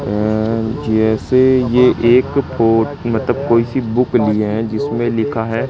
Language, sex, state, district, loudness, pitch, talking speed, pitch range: Hindi, male, Madhya Pradesh, Katni, -15 LUFS, 115 Hz, 135 wpm, 110-125 Hz